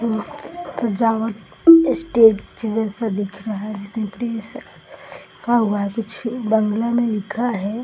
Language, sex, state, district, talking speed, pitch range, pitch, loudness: Hindi, female, Bihar, Gaya, 130 wpm, 210-235 Hz, 225 Hz, -19 LUFS